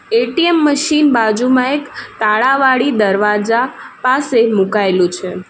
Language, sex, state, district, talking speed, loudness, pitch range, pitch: Gujarati, female, Gujarat, Valsad, 110 wpm, -14 LUFS, 210-285 Hz, 250 Hz